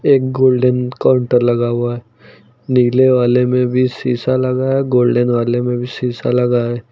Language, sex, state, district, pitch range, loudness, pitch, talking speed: Hindi, male, Uttar Pradesh, Lucknow, 120-130 Hz, -15 LUFS, 125 Hz, 175 wpm